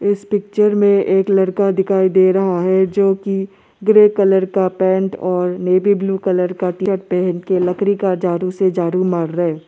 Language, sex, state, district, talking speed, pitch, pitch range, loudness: Hindi, male, Arunachal Pradesh, Lower Dibang Valley, 190 wpm, 190 Hz, 180-195 Hz, -16 LUFS